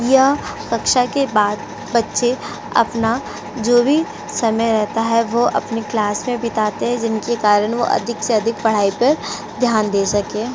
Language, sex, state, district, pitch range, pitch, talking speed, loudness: Hindi, female, Uttar Pradesh, Jyotiba Phule Nagar, 215-245 Hz, 230 Hz, 160 wpm, -18 LUFS